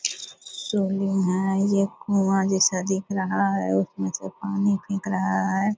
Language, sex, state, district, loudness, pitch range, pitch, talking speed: Hindi, female, Bihar, Purnia, -24 LUFS, 140-195 Hz, 195 Hz, 145 wpm